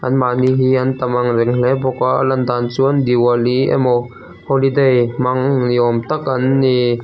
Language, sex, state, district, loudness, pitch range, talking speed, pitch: Mizo, male, Mizoram, Aizawl, -15 LUFS, 120-130 Hz, 185 wpm, 130 Hz